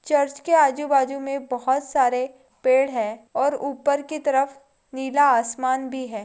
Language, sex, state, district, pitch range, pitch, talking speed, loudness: Hindi, female, Goa, North and South Goa, 260-280 Hz, 270 Hz, 145 wpm, -22 LUFS